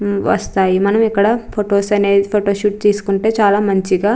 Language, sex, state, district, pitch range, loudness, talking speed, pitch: Telugu, female, Andhra Pradesh, Chittoor, 200-210 Hz, -15 LUFS, 160 wpm, 205 Hz